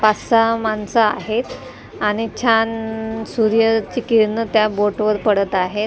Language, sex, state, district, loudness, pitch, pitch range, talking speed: Marathi, female, Maharashtra, Mumbai Suburban, -18 LUFS, 220 Hz, 215-225 Hz, 125 wpm